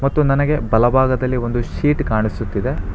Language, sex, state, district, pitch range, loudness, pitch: Kannada, male, Karnataka, Bangalore, 110-140 Hz, -18 LUFS, 125 Hz